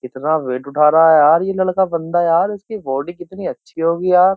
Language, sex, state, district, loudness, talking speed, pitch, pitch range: Hindi, male, Uttar Pradesh, Jyotiba Phule Nagar, -16 LUFS, 220 wpm, 165 Hz, 150-185 Hz